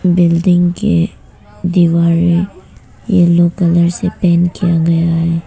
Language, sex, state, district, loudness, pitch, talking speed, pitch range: Hindi, female, Arunachal Pradesh, Papum Pare, -13 LUFS, 175 Hz, 110 wpm, 170-180 Hz